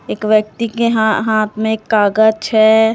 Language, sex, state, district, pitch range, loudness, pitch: Hindi, female, Chhattisgarh, Raipur, 215-220 Hz, -14 LUFS, 220 Hz